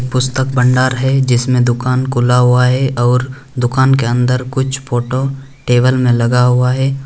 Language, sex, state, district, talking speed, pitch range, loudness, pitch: Hindi, male, Bihar, Bhagalpur, 160 wpm, 125-130 Hz, -13 LUFS, 125 Hz